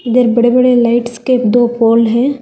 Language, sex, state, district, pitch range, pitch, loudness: Hindi, female, Telangana, Hyderabad, 235-250 Hz, 240 Hz, -11 LUFS